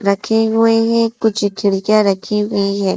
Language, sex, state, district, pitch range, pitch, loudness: Hindi, female, Madhya Pradesh, Dhar, 200-225 Hz, 210 Hz, -15 LUFS